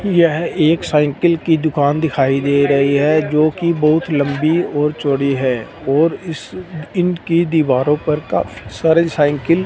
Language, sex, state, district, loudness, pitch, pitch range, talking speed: Hindi, male, Punjab, Fazilka, -16 LUFS, 155 Hz, 140-165 Hz, 160 wpm